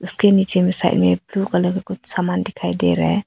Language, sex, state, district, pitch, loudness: Hindi, female, Arunachal Pradesh, Papum Pare, 180 Hz, -18 LUFS